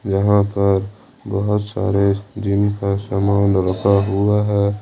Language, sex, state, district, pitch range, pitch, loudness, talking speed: Hindi, male, Jharkhand, Ranchi, 100-105 Hz, 100 Hz, -18 LUFS, 125 wpm